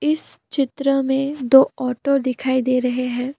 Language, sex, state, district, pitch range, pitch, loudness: Hindi, female, Assam, Kamrup Metropolitan, 255-275 Hz, 265 Hz, -19 LUFS